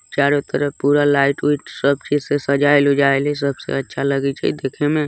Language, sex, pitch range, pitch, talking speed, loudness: Bajjika, male, 140-145 Hz, 140 Hz, 215 wpm, -18 LUFS